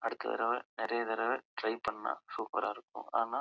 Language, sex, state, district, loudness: Tamil, male, Karnataka, Chamarajanagar, -36 LUFS